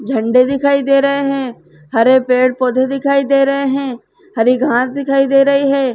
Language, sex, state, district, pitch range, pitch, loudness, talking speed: Hindi, female, Uttar Pradesh, Varanasi, 250-275 Hz, 270 Hz, -13 LUFS, 180 wpm